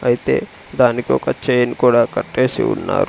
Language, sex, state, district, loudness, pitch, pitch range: Telugu, male, Andhra Pradesh, Sri Satya Sai, -17 LUFS, 120 Hz, 120-125 Hz